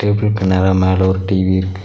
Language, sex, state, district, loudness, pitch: Tamil, male, Tamil Nadu, Nilgiris, -15 LUFS, 95 Hz